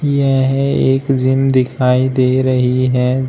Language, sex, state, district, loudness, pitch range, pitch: Hindi, male, Uttar Pradesh, Shamli, -14 LUFS, 130-135 Hz, 130 Hz